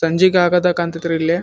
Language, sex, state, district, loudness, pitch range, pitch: Kannada, male, Karnataka, Dharwad, -16 LUFS, 165-180 Hz, 170 Hz